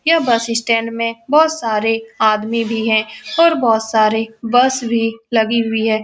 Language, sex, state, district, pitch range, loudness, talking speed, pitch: Hindi, female, Bihar, Saran, 220-235 Hz, -16 LUFS, 180 wpm, 230 Hz